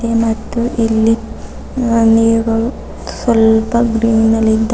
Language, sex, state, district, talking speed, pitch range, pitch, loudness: Kannada, female, Karnataka, Bidar, 100 wpm, 225-230 Hz, 225 Hz, -13 LUFS